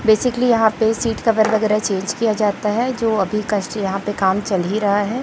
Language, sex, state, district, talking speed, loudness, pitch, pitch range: Hindi, female, Chhattisgarh, Raipur, 230 wpm, -18 LUFS, 215 Hz, 205-225 Hz